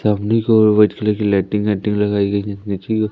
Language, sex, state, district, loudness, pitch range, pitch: Hindi, male, Madhya Pradesh, Umaria, -17 LUFS, 100-105 Hz, 105 Hz